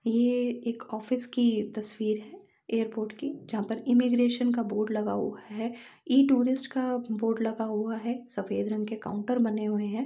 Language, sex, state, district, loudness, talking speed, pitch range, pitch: Hindi, female, Uttar Pradesh, Jalaun, -29 LUFS, 180 wpm, 215-245 Hz, 230 Hz